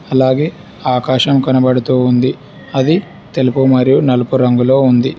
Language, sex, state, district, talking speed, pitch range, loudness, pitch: Telugu, male, Telangana, Hyderabad, 115 wpm, 125-135 Hz, -13 LUFS, 130 Hz